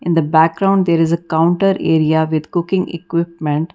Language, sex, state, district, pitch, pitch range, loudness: English, female, Karnataka, Bangalore, 165 Hz, 160-175 Hz, -16 LUFS